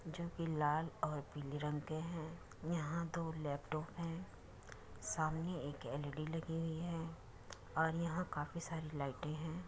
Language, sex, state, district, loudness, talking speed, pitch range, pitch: Hindi, female, Uttar Pradesh, Muzaffarnagar, -42 LUFS, 150 wpm, 145-165 Hz, 155 Hz